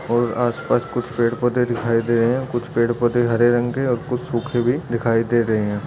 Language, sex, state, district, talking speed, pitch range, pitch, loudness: Hindi, male, Uttar Pradesh, Budaun, 215 wpm, 115-120 Hz, 120 Hz, -20 LUFS